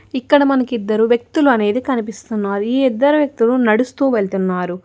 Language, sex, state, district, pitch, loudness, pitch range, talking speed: Telugu, female, Telangana, Hyderabad, 240 Hz, -16 LUFS, 215-265 Hz, 125 wpm